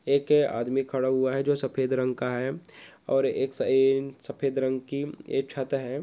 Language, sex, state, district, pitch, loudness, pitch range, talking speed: Hindi, male, Goa, North and South Goa, 135 Hz, -27 LUFS, 130-140 Hz, 180 wpm